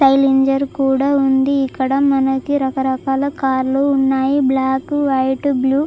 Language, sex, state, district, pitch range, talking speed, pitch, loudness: Telugu, female, Andhra Pradesh, Chittoor, 265-275 Hz, 145 wpm, 270 Hz, -16 LUFS